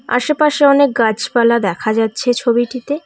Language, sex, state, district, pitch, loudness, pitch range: Bengali, female, West Bengal, Cooch Behar, 245 Hz, -14 LUFS, 230-285 Hz